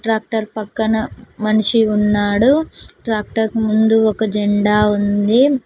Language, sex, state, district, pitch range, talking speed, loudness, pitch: Telugu, female, Telangana, Mahabubabad, 210-225 Hz, 105 wpm, -16 LUFS, 220 Hz